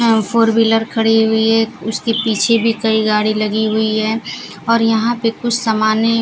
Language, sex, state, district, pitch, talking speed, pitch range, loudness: Hindi, female, Bihar, Kaimur, 225 Hz, 195 wpm, 220-230 Hz, -15 LUFS